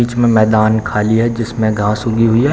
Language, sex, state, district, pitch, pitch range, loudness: Hindi, male, Bihar, Samastipur, 115 Hz, 110-115 Hz, -14 LUFS